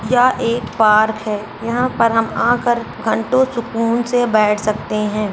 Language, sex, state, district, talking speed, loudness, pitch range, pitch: Hindi, female, Uttar Pradesh, Ghazipur, 160 wpm, -17 LUFS, 215-240 Hz, 230 Hz